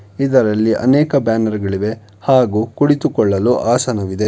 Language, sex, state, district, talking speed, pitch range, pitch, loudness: Kannada, male, Karnataka, Bangalore, 100 wpm, 105-130 Hz, 110 Hz, -15 LUFS